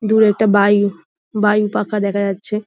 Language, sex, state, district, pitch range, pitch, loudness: Bengali, female, West Bengal, Jhargram, 200-210 Hz, 210 Hz, -16 LUFS